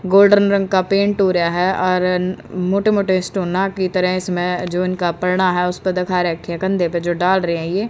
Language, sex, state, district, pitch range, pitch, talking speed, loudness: Hindi, female, Haryana, Jhajjar, 180-190 Hz, 185 Hz, 230 wpm, -17 LUFS